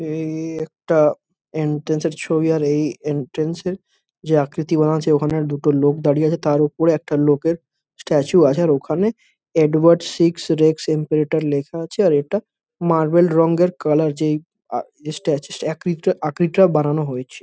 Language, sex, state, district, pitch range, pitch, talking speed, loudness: Bengali, male, West Bengal, Kolkata, 150-165 Hz, 155 Hz, 150 wpm, -19 LUFS